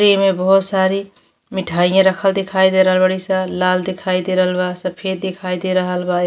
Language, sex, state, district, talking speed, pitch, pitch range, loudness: Bhojpuri, female, Uttar Pradesh, Deoria, 210 wpm, 185 Hz, 185-190 Hz, -17 LUFS